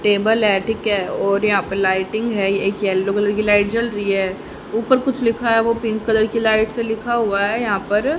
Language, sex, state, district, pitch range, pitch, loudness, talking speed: Hindi, female, Haryana, Charkhi Dadri, 200-230 Hz, 215 Hz, -18 LUFS, 225 wpm